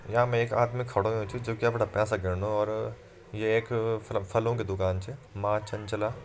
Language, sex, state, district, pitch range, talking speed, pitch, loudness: Hindi, male, Uttarakhand, Uttarkashi, 105-115 Hz, 190 wpm, 110 Hz, -29 LUFS